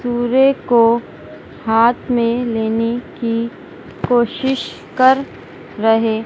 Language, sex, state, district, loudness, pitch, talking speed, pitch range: Hindi, female, Madhya Pradesh, Dhar, -16 LUFS, 235 Hz, 85 wpm, 230-260 Hz